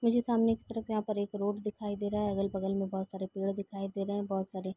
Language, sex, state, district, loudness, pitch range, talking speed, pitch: Hindi, female, Bihar, East Champaran, -34 LUFS, 195-210 Hz, 315 wpm, 205 Hz